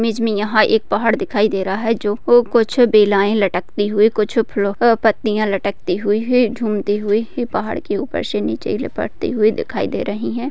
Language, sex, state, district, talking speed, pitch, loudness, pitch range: Hindi, female, Maharashtra, Pune, 170 wpm, 215 Hz, -17 LUFS, 205-230 Hz